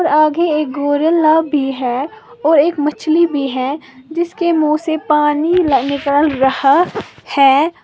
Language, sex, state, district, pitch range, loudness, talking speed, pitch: Hindi, female, Uttar Pradesh, Lalitpur, 280-325 Hz, -14 LUFS, 130 wpm, 300 Hz